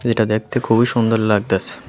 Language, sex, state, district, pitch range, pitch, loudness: Bengali, male, Tripura, West Tripura, 110-115 Hz, 115 Hz, -17 LUFS